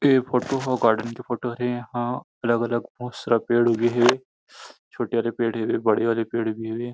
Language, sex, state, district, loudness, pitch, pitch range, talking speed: Chhattisgarhi, male, Chhattisgarh, Rajnandgaon, -24 LUFS, 120 Hz, 115-125 Hz, 200 wpm